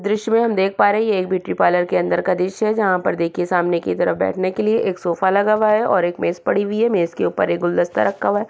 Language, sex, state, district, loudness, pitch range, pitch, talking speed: Hindi, female, Uttarakhand, Tehri Garhwal, -18 LUFS, 175-215 Hz, 190 Hz, 310 wpm